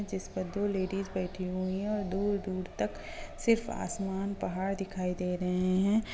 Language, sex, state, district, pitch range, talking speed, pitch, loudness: Hindi, female, Bihar, Gaya, 185-200 Hz, 155 wpm, 190 Hz, -33 LUFS